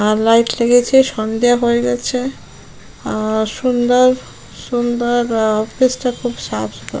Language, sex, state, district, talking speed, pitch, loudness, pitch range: Bengali, female, West Bengal, Jalpaiguri, 130 wpm, 240 Hz, -16 LUFS, 220-250 Hz